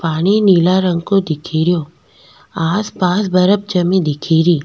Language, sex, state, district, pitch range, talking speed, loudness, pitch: Rajasthani, female, Rajasthan, Nagaur, 165-190 Hz, 115 wpm, -15 LUFS, 175 Hz